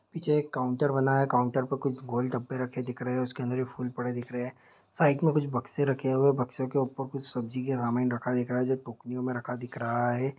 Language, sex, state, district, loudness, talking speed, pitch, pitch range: Hindi, male, Bihar, Saharsa, -30 LUFS, 235 wpm, 125 Hz, 125-135 Hz